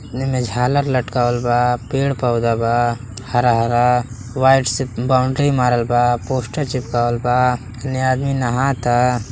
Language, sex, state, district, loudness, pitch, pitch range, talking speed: Bhojpuri, male, Uttar Pradesh, Deoria, -18 LUFS, 125 Hz, 120-130 Hz, 130 wpm